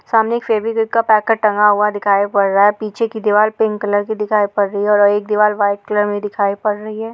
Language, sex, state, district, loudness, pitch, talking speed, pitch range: Hindi, female, Uttar Pradesh, Etah, -15 LUFS, 210 Hz, 260 wpm, 205-220 Hz